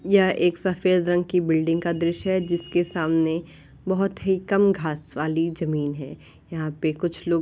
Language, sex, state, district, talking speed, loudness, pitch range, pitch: Hindi, female, Uttar Pradesh, Varanasi, 180 wpm, -23 LUFS, 160-185 Hz, 170 Hz